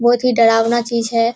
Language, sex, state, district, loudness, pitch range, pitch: Hindi, female, Bihar, Kishanganj, -15 LUFS, 230-240 Hz, 235 Hz